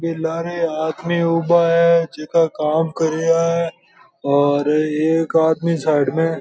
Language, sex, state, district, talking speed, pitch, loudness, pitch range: Marwari, male, Rajasthan, Nagaur, 150 wpm, 165 Hz, -18 LUFS, 155-170 Hz